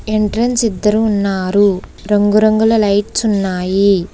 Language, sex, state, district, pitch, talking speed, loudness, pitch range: Telugu, female, Telangana, Hyderabad, 205 Hz, 85 wpm, -14 LUFS, 195-215 Hz